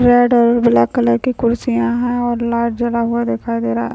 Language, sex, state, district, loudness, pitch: Hindi, male, Chhattisgarh, Raigarh, -16 LUFS, 235 Hz